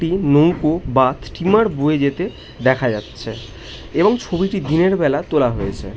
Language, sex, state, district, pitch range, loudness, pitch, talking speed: Bengali, male, West Bengal, North 24 Parganas, 125-185 Hz, -17 LUFS, 150 Hz, 160 wpm